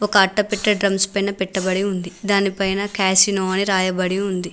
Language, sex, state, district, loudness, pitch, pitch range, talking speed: Telugu, female, Telangana, Mahabubabad, -19 LUFS, 195 Hz, 190-200 Hz, 145 wpm